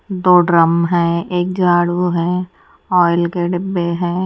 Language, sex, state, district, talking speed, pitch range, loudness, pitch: Hindi, female, Odisha, Nuapada, 140 wpm, 170-180 Hz, -15 LUFS, 175 Hz